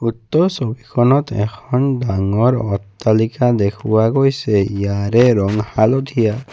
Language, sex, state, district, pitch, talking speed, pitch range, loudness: Assamese, male, Assam, Kamrup Metropolitan, 115 Hz, 90 wpm, 105-125 Hz, -16 LUFS